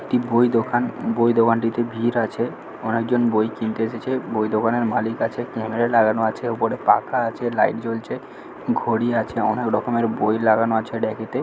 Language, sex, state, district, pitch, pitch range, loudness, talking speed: Bengali, male, West Bengal, Dakshin Dinajpur, 115 Hz, 110-120 Hz, -21 LUFS, 170 wpm